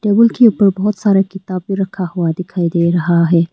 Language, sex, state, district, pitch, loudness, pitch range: Hindi, female, Arunachal Pradesh, Lower Dibang Valley, 190 Hz, -14 LUFS, 170-205 Hz